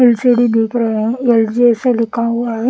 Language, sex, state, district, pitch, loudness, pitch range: Hindi, female, Punjab, Pathankot, 235 Hz, -14 LUFS, 225-245 Hz